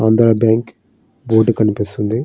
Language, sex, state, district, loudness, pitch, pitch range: Telugu, male, Andhra Pradesh, Srikakulam, -15 LUFS, 110 Hz, 110-115 Hz